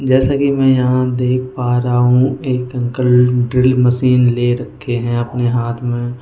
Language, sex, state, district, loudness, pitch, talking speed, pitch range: Hindi, male, Goa, North and South Goa, -15 LUFS, 125 Hz, 175 wpm, 120-130 Hz